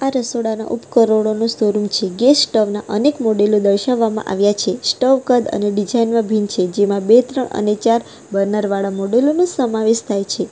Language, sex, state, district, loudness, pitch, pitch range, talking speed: Gujarati, female, Gujarat, Valsad, -16 LUFS, 220 Hz, 205-245 Hz, 190 wpm